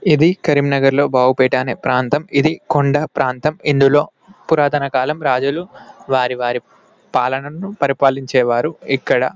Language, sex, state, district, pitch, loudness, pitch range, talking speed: Telugu, male, Telangana, Karimnagar, 140 Hz, -16 LUFS, 130-150 Hz, 120 wpm